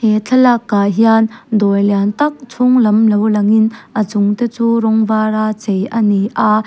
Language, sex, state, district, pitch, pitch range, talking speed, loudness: Mizo, female, Mizoram, Aizawl, 220 Hz, 210-230 Hz, 190 wpm, -13 LUFS